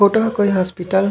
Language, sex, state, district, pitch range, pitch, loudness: Chhattisgarhi, male, Chhattisgarh, Raigarh, 190-205 Hz, 200 Hz, -17 LUFS